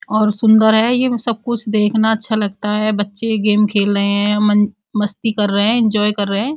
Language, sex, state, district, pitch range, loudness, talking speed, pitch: Hindi, female, Uttar Pradesh, Muzaffarnagar, 205-220 Hz, -15 LUFS, 210 wpm, 210 Hz